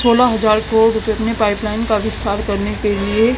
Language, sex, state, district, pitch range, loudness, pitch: Hindi, female, Haryana, Charkhi Dadri, 210-225 Hz, -16 LUFS, 220 Hz